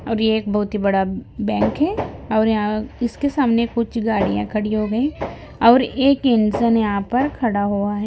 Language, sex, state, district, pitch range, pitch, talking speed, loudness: Hindi, female, Himachal Pradesh, Shimla, 210-240 Hz, 220 Hz, 185 wpm, -19 LUFS